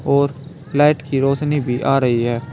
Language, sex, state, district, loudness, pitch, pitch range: Hindi, male, Uttar Pradesh, Saharanpur, -18 LUFS, 140 Hz, 130-145 Hz